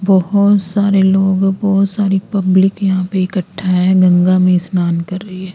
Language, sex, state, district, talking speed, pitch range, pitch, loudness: Hindi, female, Chandigarh, Chandigarh, 175 wpm, 185-195 Hz, 190 Hz, -13 LUFS